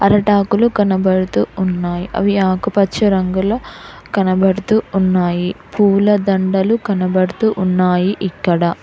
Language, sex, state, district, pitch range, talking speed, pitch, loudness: Telugu, female, Telangana, Hyderabad, 185-205 Hz, 80 wpm, 195 Hz, -15 LUFS